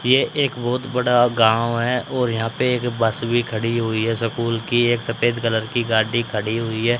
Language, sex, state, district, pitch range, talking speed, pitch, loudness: Hindi, male, Haryana, Charkhi Dadri, 115-120 Hz, 205 wpm, 115 Hz, -20 LUFS